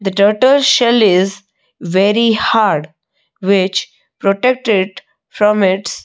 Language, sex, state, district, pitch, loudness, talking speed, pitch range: English, female, Odisha, Malkangiri, 200 Hz, -13 LUFS, 120 wpm, 190-230 Hz